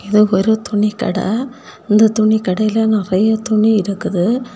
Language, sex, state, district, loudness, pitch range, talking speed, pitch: Tamil, female, Tamil Nadu, Kanyakumari, -15 LUFS, 205-220 Hz, 105 wpm, 215 Hz